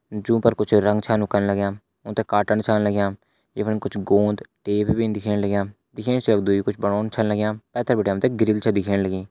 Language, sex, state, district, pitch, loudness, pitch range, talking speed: Hindi, male, Uttarakhand, Uttarkashi, 105 Hz, -22 LUFS, 100-110 Hz, 230 wpm